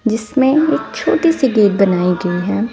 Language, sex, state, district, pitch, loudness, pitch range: Hindi, female, Punjab, Fazilka, 220 Hz, -15 LUFS, 195-265 Hz